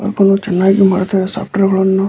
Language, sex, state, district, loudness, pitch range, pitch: Kannada, male, Karnataka, Dharwad, -13 LUFS, 190-195 Hz, 195 Hz